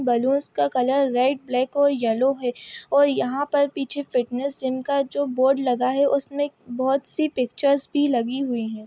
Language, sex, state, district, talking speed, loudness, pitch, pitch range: Hindi, female, Uttar Pradesh, Etah, 180 wpm, -22 LUFS, 270 Hz, 250-280 Hz